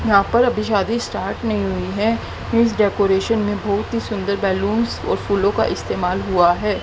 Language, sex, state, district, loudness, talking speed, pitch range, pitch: Hindi, female, Haryana, Jhajjar, -19 LUFS, 185 wpm, 195-225 Hz, 205 Hz